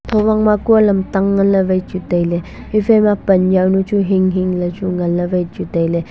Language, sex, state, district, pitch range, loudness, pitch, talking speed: Wancho, male, Arunachal Pradesh, Longding, 180-205 Hz, -15 LUFS, 190 Hz, 195 wpm